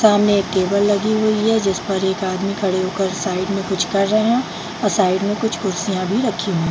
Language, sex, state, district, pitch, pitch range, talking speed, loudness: Hindi, female, Bihar, Jahanabad, 195 Hz, 185-210 Hz, 235 wpm, -18 LUFS